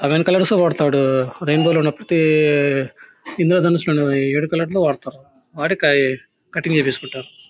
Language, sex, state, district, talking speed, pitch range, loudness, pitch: Telugu, male, Andhra Pradesh, Anantapur, 120 wpm, 135-170 Hz, -18 LUFS, 150 Hz